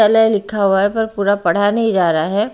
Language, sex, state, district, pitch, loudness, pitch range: Hindi, female, Haryana, Rohtak, 205 Hz, -15 LUFS, 195-220 Hz